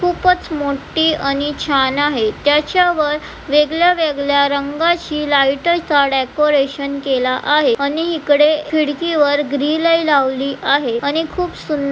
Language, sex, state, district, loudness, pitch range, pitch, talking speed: Marathi, female, Maharashtra, Pune, -16 LUFS, 280-320 Hz, 295 Hz, 130 wpm